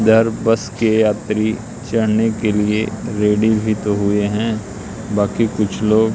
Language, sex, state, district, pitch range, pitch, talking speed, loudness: Hindi, male, Madhya Pradesh, Katni, 105-110 Hz, 110 Hz, 145 wpm, -17 LUFS